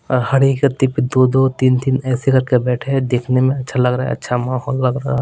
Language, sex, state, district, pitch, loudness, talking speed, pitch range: Hindi, male, Bihar, Patna, 130 Hz, -16 LUFS, 255 wpm, 125-135 Hz